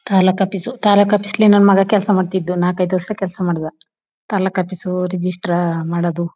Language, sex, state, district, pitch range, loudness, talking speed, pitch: Kannada, female, Karnataka, Chamarajanagar, 180-200 Hz, -16 LUFS, 170 wpm, 185 Hz